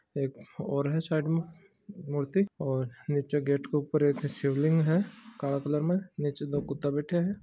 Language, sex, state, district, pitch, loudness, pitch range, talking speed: Marwari, male, Rajasthan, Churu, 150 Hz, -30 LUFS, 140-175 Hz, 180 wpm